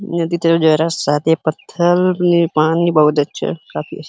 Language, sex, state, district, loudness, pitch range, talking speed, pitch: Hindi, male, Uttar Pradesh, Hamirpur, -15 LUFS, 155-170 Hz, 90 wpm, 165 Hz